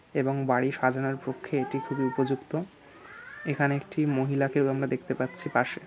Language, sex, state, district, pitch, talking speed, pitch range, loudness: Bengali, male, West Bengal, Kolkata, 135 Hz, 155 wpm, 130-140 Hz, -28 LUFS